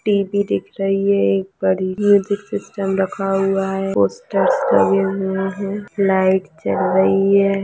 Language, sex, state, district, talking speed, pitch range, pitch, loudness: Hindi, male, Chhattisgarh, Raigarh, 150 wpm, 190-200 Hz, 195 Hz, -18 LUFS